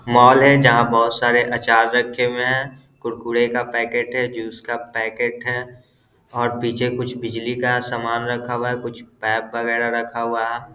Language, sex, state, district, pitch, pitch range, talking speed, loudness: Hindi, male, Bihar, Gaya, 120 Hz, 115-125 Hz, 185 wpm, -19 LUFS